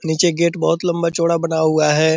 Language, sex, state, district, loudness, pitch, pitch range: Hindi, male, Bihar, Purnia, -17 LUFS, 165 Hz, 160-170 Hz